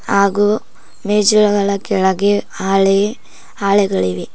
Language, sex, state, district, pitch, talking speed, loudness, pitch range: Kannada, female, Karnataka, Koppal, 200 Hz, 70 wpm, -15 LUFS, 195-210 Hz